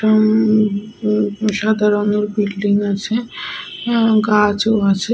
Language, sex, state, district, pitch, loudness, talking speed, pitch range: Bengali, female, Jharkhand, Sahebganj, 210 Hz, -17 LUFS, 95 wpm, 205-215 Hz